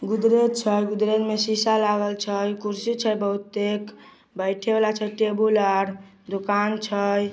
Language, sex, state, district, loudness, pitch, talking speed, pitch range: Magahi, male, Bihar, Samastipur, -23 LUFS, 210 Hz, 145 wpm, 200-215 Hz